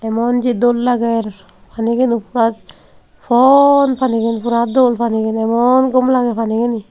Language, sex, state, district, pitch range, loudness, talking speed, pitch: Chakma, female, Tripura, Unakoti, 225-250 Hz, -14 LUFS, 120 wpm, 235 Hz